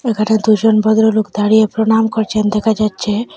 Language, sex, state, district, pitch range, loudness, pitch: Bengali, female, Assam, Hailakandi, 215-220 Hz, -14 LUFS, 220 Hz